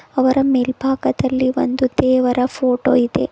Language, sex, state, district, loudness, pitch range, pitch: Kannada, female, Karnataka, Bidar, -17 LUFS, 250-265 Hz, 255 Hz